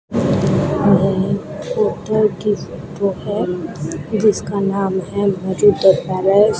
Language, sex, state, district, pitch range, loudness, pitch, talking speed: Hindi, female, Rajasthan, Bikaner, 185-210 Hz, -17 LUFS, 195 Hz, 100 wpm